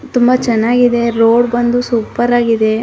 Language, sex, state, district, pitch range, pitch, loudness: Kannada, female, Karnataka, Mysore, 230-245 Hz, 240 Hz, -12 LUFS